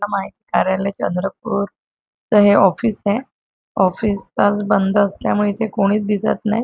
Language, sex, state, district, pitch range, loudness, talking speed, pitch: Marathi, female, Maharashtra, Chandrapur, 195-210 Hz, -18 LUFS, 115 wpm, 205 Hz